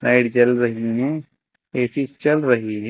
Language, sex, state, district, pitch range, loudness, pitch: Hindi, male, Uttar Pradesh, Lucknow, 120-140 Hz, -20 LUFS, 125 Hz